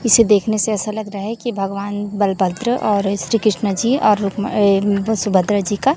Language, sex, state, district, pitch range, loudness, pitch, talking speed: Hindi, female, Chhattisgarh, Raipur, 200-220 Hz, -17 LUFS, 205 Hz, 190 wpm